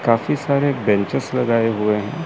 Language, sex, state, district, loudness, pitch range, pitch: Hindi, male, Chandigarh, Chandigarh, -19 LUFS, 105-140 Hz, 115 Hz